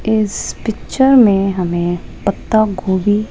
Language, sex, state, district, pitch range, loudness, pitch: Hindi, female, Rajasthan, Jaipur, 185-220 Hz, -15 LUFS, 205 Hz